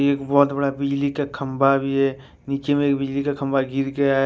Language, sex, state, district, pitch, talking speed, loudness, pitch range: Hindi, male, Jharkhand, Ranchi, 140 Hz, 240 wpm, -21 LUFS, 135-140 Hz